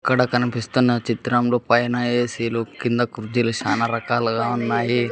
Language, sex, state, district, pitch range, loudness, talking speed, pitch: Telugu, male, Andhra Pradesh, Sri Satya Sai, 115-120 Hz, -21 LUFS, 115 wpm, 120 Hz